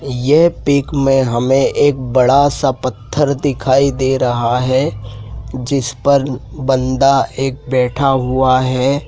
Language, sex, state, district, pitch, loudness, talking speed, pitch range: Hindi, male, Madhya Pradesh, Dhar, 130 Hz, -14 LUFS, 125 wpm, 125-140 Hz